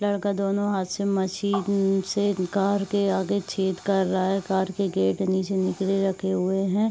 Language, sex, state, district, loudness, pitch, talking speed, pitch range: Hindi, female, Bihar, Saharsa, -25 LUFS, 195 Hz, 180 wpm, 190-200 Hz